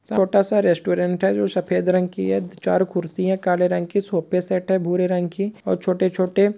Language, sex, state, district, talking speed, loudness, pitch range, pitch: Hindi, male, West Bengal, Purulia, 220 wpm, -21 LUFS, 180-190 Hz, 185 Hz